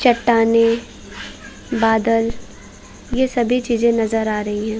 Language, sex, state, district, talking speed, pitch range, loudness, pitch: Hindi, female, Chhattisgarh, Bilaspur, 110 wpm, 225-235 Hz, -18 LUFS, 230 Hz